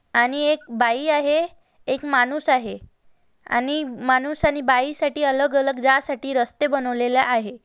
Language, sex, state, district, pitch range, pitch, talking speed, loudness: Marathi, female, Maharashtra, Aurangabad, 250-295 Hz, 275 Hz, 135 wpm, -21 LUFS